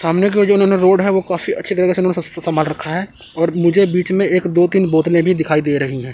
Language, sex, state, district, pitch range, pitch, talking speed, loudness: Hindi, male, Chandigarh, Chandigarh, 165-190 Hz, 180 Hz, 265 wpm, -15 LUFS